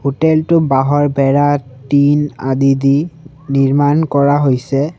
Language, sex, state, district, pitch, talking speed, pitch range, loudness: Assamese, male, Assam, Sonitpur, 140 Hz, 120 wpm, 135-150 Hz, -13 LUFS